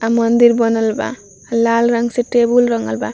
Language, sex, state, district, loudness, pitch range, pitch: Bhojpuri, female, Bihar, Gopalganj, -15 LUFS, 225-235 Hz, 230 Hz